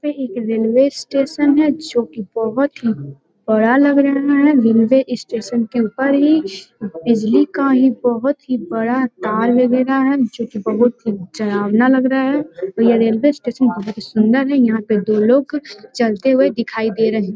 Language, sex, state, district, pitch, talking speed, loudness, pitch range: Hindi, female, Bihar, Jamui, 240 Hz, 175 wpm, -16 LUFS, 220-270 Hz